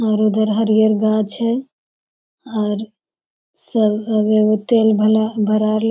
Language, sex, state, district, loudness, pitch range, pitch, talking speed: Hindi, female, Bihar, Jamui, -17 LUFS, 215-220 Hz, 215 Hz, 110 wpm